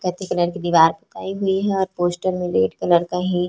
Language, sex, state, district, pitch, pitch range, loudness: Hindi, female, Chhattisgarh, Korba, 180 Hz, 175-190 Hz, -20 LUFS